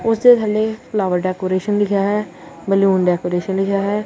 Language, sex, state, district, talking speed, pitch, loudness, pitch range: Punjabi, male, Punjab, Kapurthala, 150 wpm, 200 Hz, -17 LUFS, 185-210 Hz